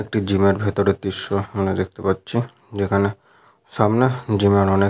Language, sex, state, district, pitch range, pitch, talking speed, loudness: Bengali, male, Jharkhand, Sahebganj, 100-105 Hz, 100 Hz, 170 wpm, -20 LUFS